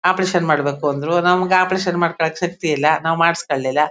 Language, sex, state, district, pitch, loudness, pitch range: Kannada, female, Karnataka, Mysore, 170 Hz, -18 LUFS, 150-180 Hz